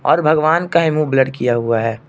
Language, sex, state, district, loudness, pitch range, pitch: Hindi, male, Arunachal Pradesh, Lower Dibang Valley, -16 LUFS, 120-155 Hz, 135 Hz